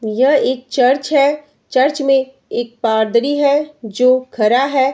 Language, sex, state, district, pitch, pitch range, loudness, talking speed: Hindi, female, Bihar, Araria, 260 Hz, 240-280 Hz, -15 LUFS, 145 wpm